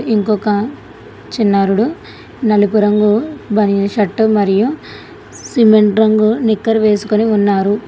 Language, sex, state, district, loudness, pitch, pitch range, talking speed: Telugu, female, Telangana, Hyderabad, -13 LUFS, 215 Hz, 205-220 Hz, 90 wpm